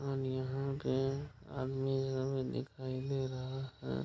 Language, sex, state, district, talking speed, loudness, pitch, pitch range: Hindi, male, Bihar, Kishanganj, 135 wpm, -38 LUFS, 130 Hz, 130-135 Hz